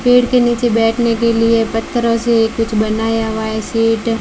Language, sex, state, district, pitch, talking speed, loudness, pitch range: Hindi, female, Rajasthan, Bikaner, 225 Hz, 200 wpm, -15 LUFS, 225-235 Hz